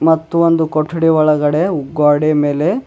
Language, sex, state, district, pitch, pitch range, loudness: Kannada, male, Karnataka, Bidar, 155 Hz, 150-165 Hz, -14 LUFS